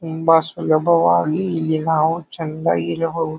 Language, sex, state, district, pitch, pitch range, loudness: Kannada, male, Karnataka, Bijapur, 160 Hz, 155-165 Hz, -18 LUFS